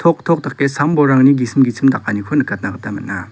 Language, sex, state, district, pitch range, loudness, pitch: Garo, male, Meghalaya, South Garo Hills, 105-145 Hz, -15 LUFS, 135 Hz